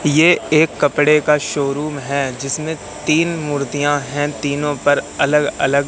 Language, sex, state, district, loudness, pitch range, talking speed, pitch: Hindi, male, Madhya Pradesh, Katni, -17 LUFS, 140-150 Hz, 145 wpm, 145 Hz